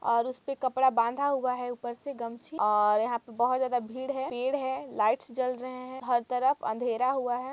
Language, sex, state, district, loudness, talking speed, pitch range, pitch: Hindi, female, Chhattisgarh, Kabirdham, -29 LUFS, 230 wpm, 235-260 Hz, 250 Hz